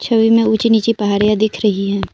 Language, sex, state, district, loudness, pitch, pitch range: Hindi, female, Assam, Kamrup Metropolitan, -14 LUFS, 220 Hz, 205-225 Hz